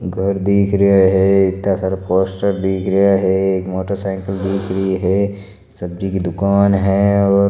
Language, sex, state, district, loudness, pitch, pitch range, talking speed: Marwari, male, Rajasthan, Nagaur, -16 LUFS, 95 Hz, 95-100 Hz, 175 wpm